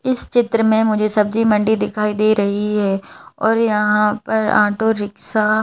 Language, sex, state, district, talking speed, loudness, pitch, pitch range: Hindi, female, Madhya Pradesh, Bhopal, 160 wpm, -17 LUFS, 215 Hz, 210-220 Hz